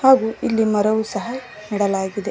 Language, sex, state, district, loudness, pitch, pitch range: Kannada, female, Karnataka, Koppal, -20 LUFS, 215 Hz, 205-235 Hz